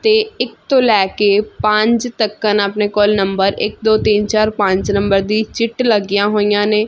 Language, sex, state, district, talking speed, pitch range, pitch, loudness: Punjabi, female, Punjab, Fazilka, 185 wpm, 205-220 Hz, 210 Hz, -15 LUFS